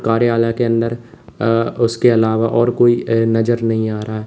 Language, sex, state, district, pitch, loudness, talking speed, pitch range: Hindi, male, Uttar Pradesh, Lalitpur, 115 Hz, -16 LUFS, 195 wpm, 115-120 Hz